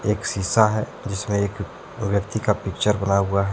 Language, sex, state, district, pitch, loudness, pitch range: Hindi, male, Jharkhand, Deoghar, 100 Hz, -22 LUFS, 100-105 Hz